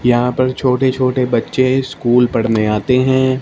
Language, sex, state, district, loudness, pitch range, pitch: Hindi, male, Punjab, Fazilka, -15 LUFS, 120-130 Hz, 125 Hz